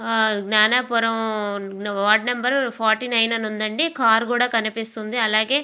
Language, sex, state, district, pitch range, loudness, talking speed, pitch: Telugu, female, Andhra Pradesh, Visakhapatnam, 215-240 Hz, -19 LUFS, 150 wpm, 225 Hz